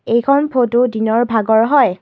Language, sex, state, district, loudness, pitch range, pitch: Assamese, female, Assam, Kamrup Metropolitan, -14 LUFS, 220-255 Hz, 235 Hz